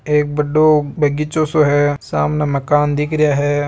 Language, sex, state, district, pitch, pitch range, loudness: Marwari, male, Rajasthan, Nagaur, 150 Hz, 145-150 Hz, -16 LUFS